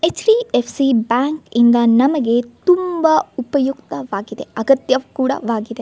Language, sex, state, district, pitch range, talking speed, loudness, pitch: Kannada, female, Karnataka, Gulbarga, 235-300 Hz, 95 wpm, -16 LUFS, 260 Hz